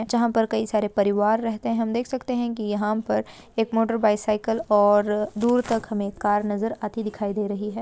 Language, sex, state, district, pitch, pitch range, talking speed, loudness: Hindi, female, Goa, North and South Goa, 220 Hz, 210-225 Hz, 230 wpm, -24 LUFS